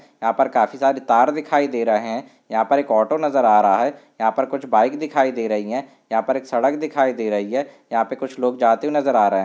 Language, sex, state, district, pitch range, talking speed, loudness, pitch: Hindi, male, Andhra Pradesh, Guntur, 110-140 Hz, 275 wpm, -20 LUFS, 130 Hz